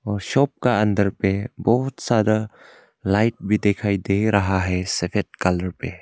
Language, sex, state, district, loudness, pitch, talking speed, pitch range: Hindi, male, Arunachal Pradesh, Longding, -21 LUFS, 105 Hz, 160 wpm, 95-110 Hz